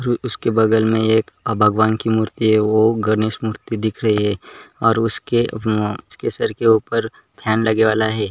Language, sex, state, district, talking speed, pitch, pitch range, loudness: Hindi, male, Maharashtra, Aurangabad, 195 wpm, 110 Hz, 110-115 Hz, -18 LUFS